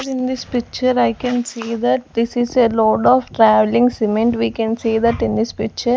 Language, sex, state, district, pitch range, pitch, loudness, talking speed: English, female, Punjab, Fazilka, 225-245 Hz, 235 Hz, -17 LUFS, 210 wpm